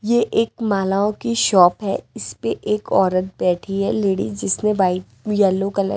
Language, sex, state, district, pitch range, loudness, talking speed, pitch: Hindi, female, Delhi, New Delhi, 185-210 Hz, -19 LUFS, 180 wpm, 195 Hz